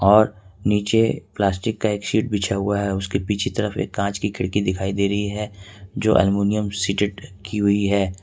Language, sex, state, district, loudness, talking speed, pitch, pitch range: Hindi, male, Jharkhand, Ranchi, -21 LUFS, 190 wpm, 100 Hz, 100-105 Hz